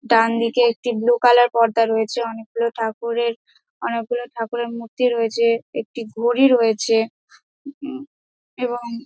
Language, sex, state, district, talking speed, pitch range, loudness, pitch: Bengali, female, West Bengal, Dakshin Dinajpur, 125 wpm, 230-245 Hz, -20 LUFS, 235 Hz